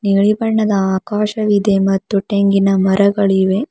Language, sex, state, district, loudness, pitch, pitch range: Kannada, female, Karnataka, Bidar, -15 LUFS, 200 Hz, 195-210 Hz